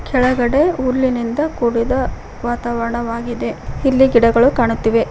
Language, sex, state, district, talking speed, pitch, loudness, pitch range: Kannada, female, Karnataka, Koppal, 80 wpm, 240 Hz, -17 LUFS, 235-260 Hz